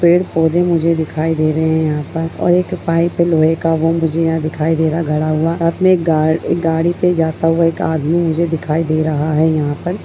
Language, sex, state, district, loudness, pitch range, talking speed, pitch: Hindi, female, Bihar, Jamui, -15 LUFS, 160-170 Hz, 245 wpm, 165 Hz